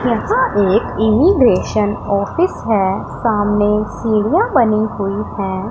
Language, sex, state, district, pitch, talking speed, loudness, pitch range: Hindi, female, Punjab, Pathankot, 210 Hz, 105 wpm, -15 LUFS, 200-230 Hz